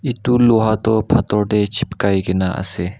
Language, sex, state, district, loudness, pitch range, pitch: Nagamese, male, Nagaland, Kohima, -17 LUFS, 95-120 Hz, 105 Hz